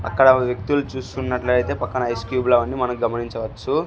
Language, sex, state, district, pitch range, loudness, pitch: Telugu, male, Andhra Pradesh, Sri Satya Sai, 115-130 Hz, -21 LUFS, 125 Hz